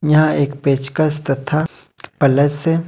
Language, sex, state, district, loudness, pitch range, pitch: Hindi, male, Jharkhand, Ranchi, -17 LUFS, 140-155 Hz, 150 Hz